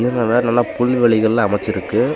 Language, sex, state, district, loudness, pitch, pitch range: Tamil, male, Tamil Nadu, Namakkal, -16 LUFS, 120 Hz, 110-120 Hz